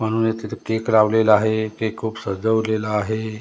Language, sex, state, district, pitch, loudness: Marathi, male, Maharashtra, Gondia, 110 Hz, -20 LUFS